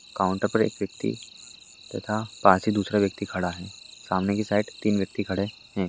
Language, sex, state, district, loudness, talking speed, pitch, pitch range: Hindi, male, Maharashtra, Chandrapur, -26 LUFS, 175 wpm, 100 Hz, 95-105 Hz